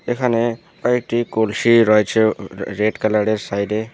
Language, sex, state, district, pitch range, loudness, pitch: Bengali, male, West Bengal, Alipurduar, 105-120 Hz, -18 LUFS, 110 Hz